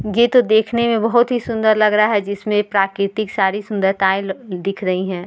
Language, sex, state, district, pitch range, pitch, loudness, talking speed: Hindi, female, Bihar, Vaishali, 195-220 Hz, 210 Hz, -17 LUFS, 195 wpm